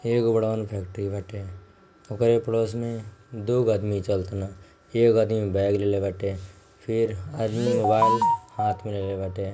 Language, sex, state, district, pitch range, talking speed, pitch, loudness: Bhojpuri, male, Bihar, Gopalganj, 100-115 Hz, 140 wpm, 105 Hz, -25 LUFS